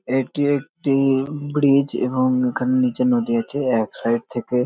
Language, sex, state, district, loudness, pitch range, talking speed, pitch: Bengali, male, West Bengal, North 24 Parganas, -20 LUFS, 125-150 Hz, 140 wpm, 140 Hz